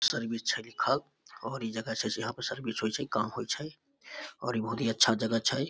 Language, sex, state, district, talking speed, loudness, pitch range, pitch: Maithili, male, Bihar, Samastipur, 220 wpm, -31 LUFS, 110-135 Hz, 115 Hz